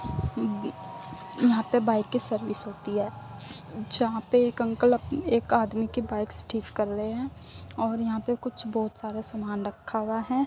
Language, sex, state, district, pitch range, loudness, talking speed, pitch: Hindi, female, Uttar Pradesh, Muzaffarnagar, 215-245 Hz, -26 LUFS, 170 wpm, 225 Hz